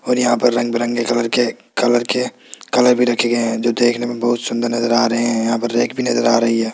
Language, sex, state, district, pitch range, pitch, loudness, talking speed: Hindi, male, Rajasthan, Jaipur, 115-120 Hz, 120 Hz, -17 LUFS, 275 wpm